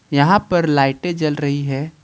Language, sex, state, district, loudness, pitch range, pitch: Hindi, male, Jharkhand, Ranchi, -17 LUFS, 140-170 Hz, 150 Hz